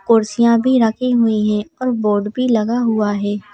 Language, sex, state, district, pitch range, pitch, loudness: Hindi, female, Madhya Pradesh, Bhopal, 210-240 Hz, 225 Hz, -16 LUFS